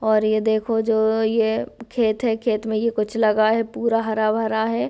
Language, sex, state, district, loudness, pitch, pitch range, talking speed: Hindi, female, Bihar, Sitamarhi, -21 LUFS, 220 Hz, 220-225 Hz, 195 wpm